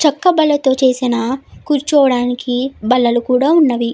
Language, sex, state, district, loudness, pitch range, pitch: Telugu, female, Andhra Pradesh, Chittoor, -14 LUFS, 245-290 Hz, 260 Hz